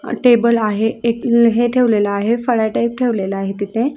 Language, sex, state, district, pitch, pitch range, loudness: Marathi, female, Maharashtra, Sindhudurg, 235 Hz, 215-240 Hz, -16 LUFS